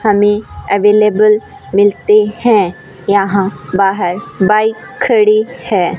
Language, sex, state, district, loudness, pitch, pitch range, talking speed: Hindi, female, Rajasthan, Bikaner, -12 LUFS, 205 Hz, 190-215 Hz, 90 wpm